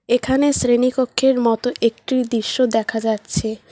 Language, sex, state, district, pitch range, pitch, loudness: Bengali, female, West Bengal, Cooch Behar, 225-260 Hz, 245 Hz, -18 LUFS